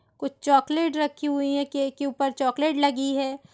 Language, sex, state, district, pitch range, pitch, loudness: Hindi, female, Chhattisgarh, Raigarh, 275-295 Hz, 280 Hz, -25 LUFS